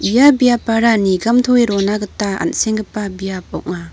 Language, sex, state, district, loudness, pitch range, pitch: Garo, female, Meghalaya, North Garo Hills, -15 LUFS, 195-235 Hz, 210 Hz